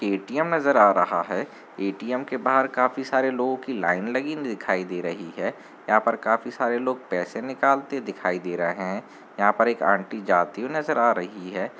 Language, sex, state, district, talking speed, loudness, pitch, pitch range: Hindi, male, Chhattisgarh, Balrampur, 200 wpm, -24 LUFS, 120 Hz, 100-130 Hz